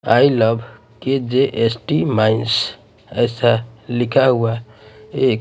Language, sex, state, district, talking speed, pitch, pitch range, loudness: Hindi, male, Odisha, Nuapada, 90 wpm, 115 Hz, 110-130 Hz, -18 LUFS